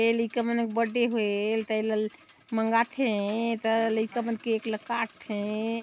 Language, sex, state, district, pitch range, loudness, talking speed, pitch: Hindi, female, Chhattisgarh, Sarguja, 220-230 Hz, -28 LUFS, 155 wpm, 225 Hz